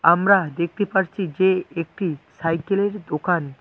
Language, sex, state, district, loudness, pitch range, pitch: Bengali, male, West Bengal, Cooch Behar, -22 LUFS, 165-195 Hz, 175 Hz